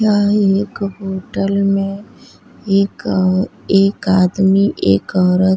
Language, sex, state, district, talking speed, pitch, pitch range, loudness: Hindi, female, Bihar, Vaishali, 110 wpm, 195 Hz, 190-200 Hz, -15 LUFS